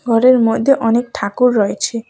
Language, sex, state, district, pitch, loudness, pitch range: Bengali, female, West Bengal, Cooch Behar, 235 Hz, -14 LUFS, 225-250 Hz